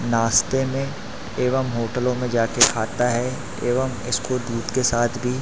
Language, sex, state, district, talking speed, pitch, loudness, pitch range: Hindi, male, Madhya Pradesh, Katni, 155 wpm, 125 Hz, -22 LUFS, 115-130 Hz